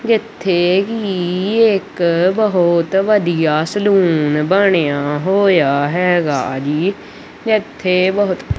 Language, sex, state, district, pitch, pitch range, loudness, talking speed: Punjabi, male, Punjab, Kapurthala, 180 Hz, 160-200 Hz, -15 LUFS, 85 wpm